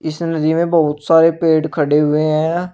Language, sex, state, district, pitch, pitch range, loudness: Hindi, male, Uttar Pradesh, Shamli, 160 Hz, 155-165 Hz, -15 LUFS